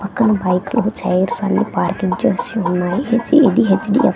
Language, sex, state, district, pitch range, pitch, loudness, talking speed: Telugu, female, Andhra Pradesh, Manyam, 190-235 Hz, 210 Hz, -16 LUFS, 145 wpm